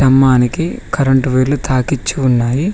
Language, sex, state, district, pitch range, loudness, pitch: Telugu, male, Telangana, Mahabubabad, 130-140 Hz, -14 LUFS, 130 Hz